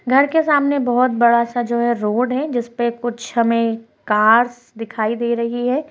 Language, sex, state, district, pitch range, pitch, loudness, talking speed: Hindi, female, Bihar, Purnia, 230-250 Hz, 240 Hz, -18 LUFS, 195 wpm